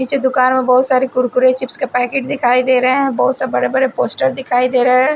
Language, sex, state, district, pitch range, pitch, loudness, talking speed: Hindi, female, Odisha, Sambalpur, 250-265 Hz, 255 Hz, -14 LUFS, 255 wpm